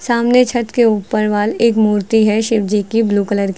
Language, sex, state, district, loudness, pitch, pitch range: Hindi, female, Uttar Pradesh, Lucknow, -14 LUFS, 215 Hz, 205-235 Hz